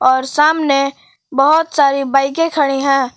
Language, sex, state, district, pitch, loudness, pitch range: Hindi, female, Jharkhand, Palamu, 275 Hz, -14 LUFS, 275-300 Hz